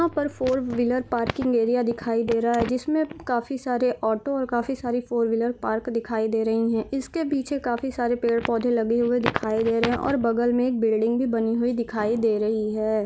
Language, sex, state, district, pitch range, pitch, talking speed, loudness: Hindi, female, Bihar, Saran, 230-255 Hz, 240 Hz, 210 wpm, -24 LUFS